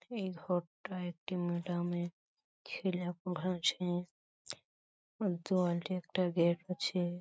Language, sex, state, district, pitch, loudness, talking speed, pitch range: Bengali, male, West Bengal, Paschim Medinipur, 180 Hz, -36 LUFS, 90 wpm, 175-185 Hz